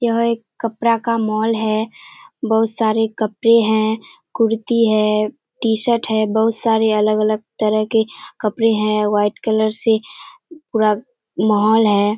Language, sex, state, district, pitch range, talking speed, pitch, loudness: Hindi, female, Bihar, Kishanganj, 215-230 Hz, 135 wpm, 220 Hz, -17 LUFS